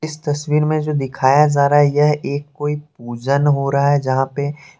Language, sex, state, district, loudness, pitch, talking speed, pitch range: Hindi, male, Jharkhand, Deoghar, -17 LUFS, 145 Hz, 225 wpm, 140-150 Hz